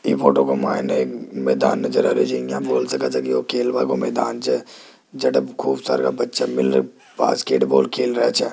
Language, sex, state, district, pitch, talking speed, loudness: Hindi, male, Rajasthan, Jaipur, 65 Hz, 125 wpm, -20 LUFS